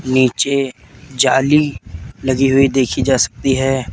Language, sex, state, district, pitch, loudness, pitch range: Hindi, male, Uttar Pradesh, Lalitpur, 130 Hz, -15 LUFS, 125-135 Hz